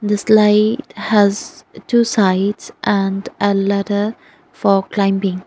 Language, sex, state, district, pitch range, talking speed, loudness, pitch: English, female, Nagaland, Dimapur, 195-215 Hz, 110 wpm, -16 LUFS, 205 Hz